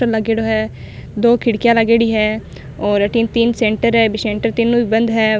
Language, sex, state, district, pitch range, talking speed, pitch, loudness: Rajasthani, female, Rajasthan, Nagaur, 220-235 Hz, 200 wpm, 225 Hz, -15 LUFS